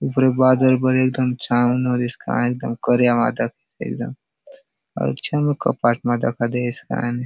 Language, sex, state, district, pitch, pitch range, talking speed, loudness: Halbi, male, Chhattisgarh, Bastar, 125 Hz, 120-130 Hz, 175 wpm, -20 LUFS